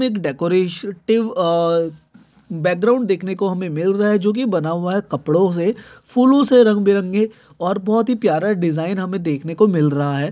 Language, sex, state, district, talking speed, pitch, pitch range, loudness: Hindi, male, Chhattisgarh, Kabirdham, 175 wpm, 195 Hz, 170-215 Hz, -18 LUFS